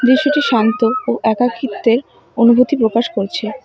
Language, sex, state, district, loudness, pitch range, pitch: Bengali, female, West Bengal, Alipurduar, -15 LUFS, 225-255 Hz, 235 Hz